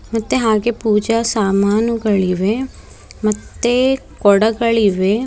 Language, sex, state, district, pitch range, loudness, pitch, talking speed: Kannada, female, Karnataka, Bidar, 205-235 Hz, -16 LUFS, 220 Hz, 70 wpm